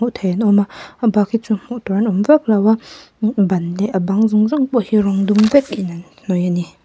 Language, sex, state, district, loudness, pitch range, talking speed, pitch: Mizo, female, Mizoram, Aizawl, -16 LUFS, 195-225 Hz, 265 wpm, 210 Hz